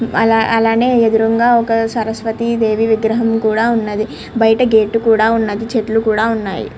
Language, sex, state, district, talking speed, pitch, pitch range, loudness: Telugu, female, Andhra Pradesh, Srikakulam, 135 wpm, 225 Hz, 220-230 Hz, -14 LUFS